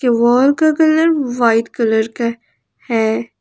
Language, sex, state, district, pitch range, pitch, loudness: Hindi, female, Jharkhand, Palamu, 225-280 Hz, 235 Hz, -15 LUFS